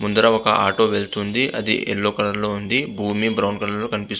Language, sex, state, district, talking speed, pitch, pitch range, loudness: Telugu, male, Andhra Pradesh, Visakhapatnam, 200 wpm, 105 Hz, 105-110 Hz, -20 LUFS